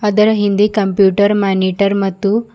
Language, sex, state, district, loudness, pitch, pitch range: Kannada, female, Karnataka, Bidar, -14 LUFS, 200 Hz, 195-210 Hz